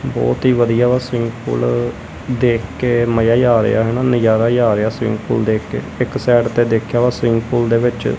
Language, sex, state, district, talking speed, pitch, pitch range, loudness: Punjabi, male, Punjab, Kapurthala, 225 wpm, 115 Hz, 110-120 Hz, -16 LUFS